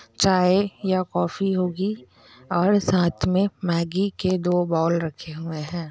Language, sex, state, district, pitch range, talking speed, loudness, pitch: Hindi, female, Bihar, Muzaffarpur, 165-190 Hz, 140 wpm, -23 LUFS, 180 Hz